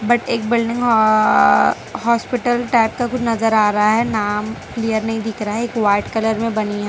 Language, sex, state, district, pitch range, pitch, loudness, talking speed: Hindi, female, Gujarat, Valsad, 210-235 Hz, 225 Hz, -17 LUFS, 210 wpm